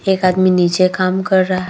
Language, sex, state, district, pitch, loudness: Hindi, female, Bihar, Vaishali, 185 Hz, -14 LUFS